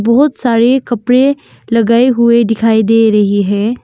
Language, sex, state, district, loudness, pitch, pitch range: Hindi, female, Arunachal Pradesh, Longding, -11 LUFS, 230 Hz, 225-245 Hz